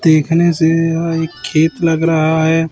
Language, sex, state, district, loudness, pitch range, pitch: Hindi, male, Chhattisgarh, Raipur, -14 LUFS, 160-165 Hz, 160 Hz